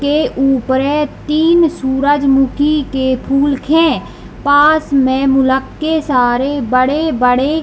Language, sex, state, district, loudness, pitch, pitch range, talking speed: Hindi, female, Bihar, East Champaran, -13 LUFS, 280 Hz, 265-300 Hz, 110 wpm